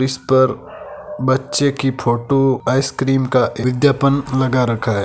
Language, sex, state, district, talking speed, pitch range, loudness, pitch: Hindi, male, Rajasthan, Nagaur, 130 wpm, 125-135 Hz, -17 LUFS, 130 Hz